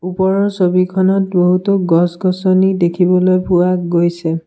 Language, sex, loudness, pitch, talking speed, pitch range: Assamese, male, -14 LUFS, 180 Hz, 95 wpm, 175-190 Hz